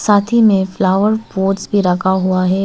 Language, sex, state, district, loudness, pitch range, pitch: Hindi, female, Arunachal Pradesh, Papum Pare, -14 LUFS, 185-205 Hz, 195 Hz